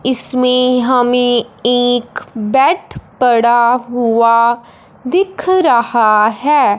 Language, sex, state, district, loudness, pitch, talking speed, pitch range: Hindi, male, Punjab, Fazilka, -12 LUFS, 245 Hz, 80 wpm, 235-255 Hz